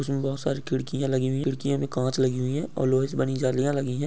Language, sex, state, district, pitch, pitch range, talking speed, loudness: Hindi, male, Bihar, Supaul, 135 Hz, 130-140 Hz, 295 wpm, -26 LUFS